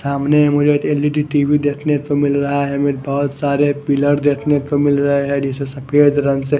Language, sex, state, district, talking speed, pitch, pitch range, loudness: Hindi, male, Maharashtra, Mumbai Suburban, 220 wpm, 145 Hz, 140-145 Hz, -16 LUFS